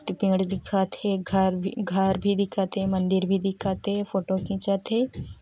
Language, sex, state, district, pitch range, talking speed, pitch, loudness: Hindi, female, Chhattisgarh, Korba, 190-200 Hz, 175 wpm, 195 Hz, -26 LUFS